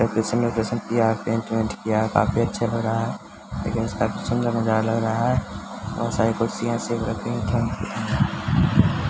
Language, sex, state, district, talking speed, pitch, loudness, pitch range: Hindi, male, Bihar, Samastipur, 180 wpm, 115 Hz, -23 LUFS, 110-115 Hz